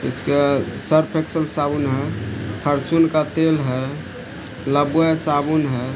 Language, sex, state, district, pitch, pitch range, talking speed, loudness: Hindi, male, Bihar, Supaul, 145 Hz, 135-155 Hz, 120 wpm, -20 LUFS